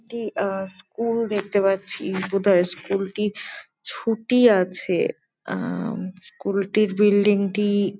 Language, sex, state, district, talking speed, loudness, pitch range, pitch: Bengali, female, West Bengal, Jalpaiguri, 110 wpm, -22 LUFS, 195-210 Hz, 200 Hz